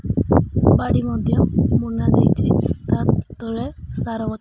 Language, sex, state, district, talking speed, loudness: Odia, male, Odisha, Malkangiri, 110 wpm, -19 LUFS